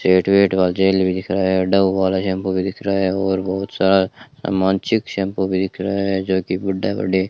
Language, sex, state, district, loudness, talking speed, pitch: Hindi, male, Rajasthan, Bikaner, -19 LUFS, 245 wpm, 95 Hz